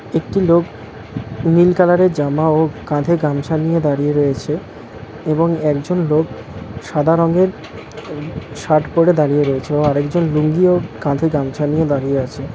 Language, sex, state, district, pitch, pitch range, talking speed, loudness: Bengali, male, West Bengal, Cooch Behar, 150 Hz, 140-165 Hz, 145 wpm, -16 LUFS